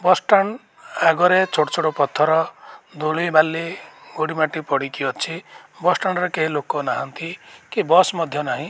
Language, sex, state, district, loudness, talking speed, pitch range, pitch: Odia, male, Odisha, Malkangiri, -20 LUFS, 150 wpm, 155-180 Hz, 165 Hz